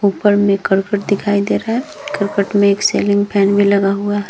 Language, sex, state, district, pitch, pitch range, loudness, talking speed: Hindi, female, Bihar, Vaishali, 200 Hz, 200-205 Hz, -15 LUFS, 225 wpm